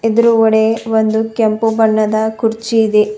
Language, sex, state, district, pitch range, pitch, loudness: Kannada, female, Karnataka, Bidar, 220-225 Hz, 220 Hz, -13 LUFS